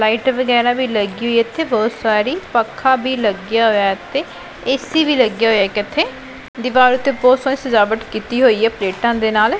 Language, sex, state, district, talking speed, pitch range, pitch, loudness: Punjabi, female, Punjab, Pathankot, 185 wpm, 220-260 Hz, 235 Hz, -16 LUFS